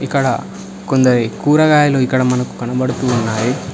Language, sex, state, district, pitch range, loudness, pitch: Telugu, male, Telangana, Hyderabad, 125-135 Hz, -15 LUFS, 130 Hz